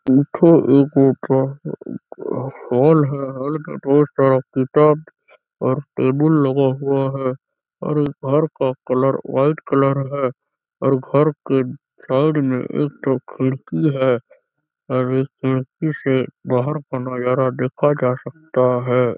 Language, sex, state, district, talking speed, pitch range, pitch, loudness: Hindi, male, Chhattisgarh, Bastar, 120 wpm, 130-145 Hz, 135 Hz, -18 LUFS